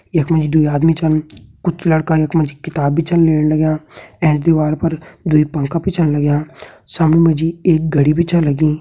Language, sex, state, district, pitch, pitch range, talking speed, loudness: Garhwali, male, Uttarakhand, Tehri Garhwal, 160 Hz, 150-165 Hz, 195 wpm, -15 LUFS